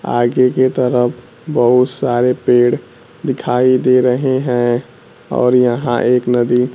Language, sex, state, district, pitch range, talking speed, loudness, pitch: Hindi, male, Bihar, Kaimur, 120-130 Hz, 125 wpm, -14 LUFS, 125 Hz